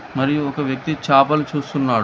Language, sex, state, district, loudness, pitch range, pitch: Telugu, male, Telangana, Hyderabad, -19 LUFS, 135-150 Hz, 140 Hz